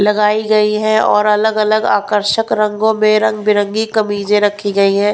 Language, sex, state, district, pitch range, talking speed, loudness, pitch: Hindi, female, Punjab, Pathankot, 205-215 Hz, 150 wpm, -14 LUFS, 210 Hz